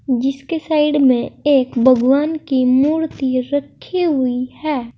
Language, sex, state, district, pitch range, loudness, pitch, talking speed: Hindi, female, Uttar Pradesh, Saharanpur, 255-300 Hz, -17 LUFS, 275 Hz, 120 wpm